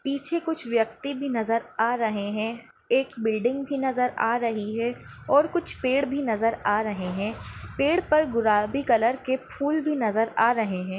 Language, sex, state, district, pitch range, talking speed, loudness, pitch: Hindi, female, Maharashtra, Nagpur, 220-280 Hz, 185 wpm, -25 LUFS, 235 Hz